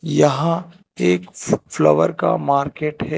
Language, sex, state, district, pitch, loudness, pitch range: Hindi, male, Telangana, Hyderabad, 150 Hz, -19 LUFS, 140-170 Hz